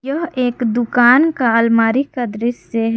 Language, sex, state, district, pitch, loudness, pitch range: Hindi, female, Jharkhand, Garhwa, 240 Hz, -15 LUFS, 230-255 Hz